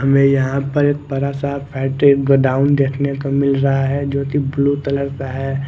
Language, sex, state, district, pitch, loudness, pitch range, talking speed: Hindi, male, Chandigarh, Chandigarh, 140 Hz, -17 LUFS, 135-140 Hz, 190 wpm